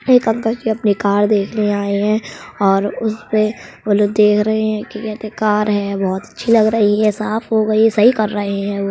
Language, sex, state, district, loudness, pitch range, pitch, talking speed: Hindi, male, Uttar Pradesh, Budaun, -16 LUFS, 205-220 Hz, 215 Hz, 235 wpm